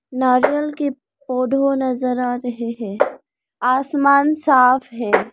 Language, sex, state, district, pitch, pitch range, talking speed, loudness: Hindi, female, Arunachal Pradesh, Lower Dibang Valley, 260 Hz, 250-280 Hz, 110 wpm, -18 LUFS